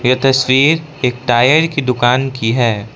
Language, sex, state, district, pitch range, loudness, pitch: Hindi, male, Arunachal Pradesh, Lower Dibang Valley, 120-135 Hz, -13 LUFS, 125 Hz